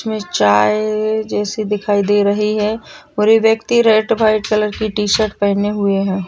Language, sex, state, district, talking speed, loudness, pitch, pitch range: Hindi, female, Bihar, Kishanganj, 170 wpm, -15 LUFS, 210 Hz, 205-220 Hz